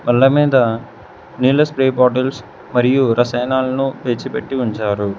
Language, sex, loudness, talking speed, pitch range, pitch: Telugu, male, -16 LUFS, 115 wpm, 120-135 Hz, 125 Hz